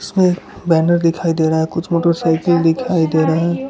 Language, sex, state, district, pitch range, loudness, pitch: Hindi, male, Gujarat, Valsad, 160-170 Hz, -16 LUFS, 165 Hz